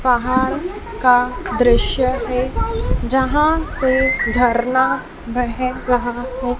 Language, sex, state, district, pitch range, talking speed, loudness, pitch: Hindi, female, Madhya Pradesh, Dhar, 245-265 Hz, 90 wpm, -18 LUFS, 255 Hz